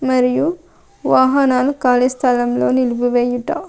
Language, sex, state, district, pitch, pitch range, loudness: Telugu, female, Andhra Pradesh, Krishna, 255 Hz, 245-275 Hz, -16 LUFS